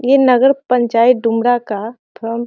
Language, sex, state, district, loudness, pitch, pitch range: Hindi, female, Bihar, Sitamarhi, -14 LUFS, 240 Hz, 230-250 Hz